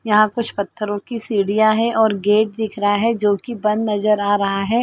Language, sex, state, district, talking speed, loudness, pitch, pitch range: Hindi, female, Chhattisgarh, Bilaspur, 225 wpm, -18 LUFS, 215 Hz, 205-225 Hz